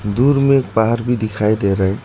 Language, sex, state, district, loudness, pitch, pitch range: Hindi, male, Arunachal Pradesh, Lower Dibang Valley, -16 LUFS, 110 Hz, 105-125 Hz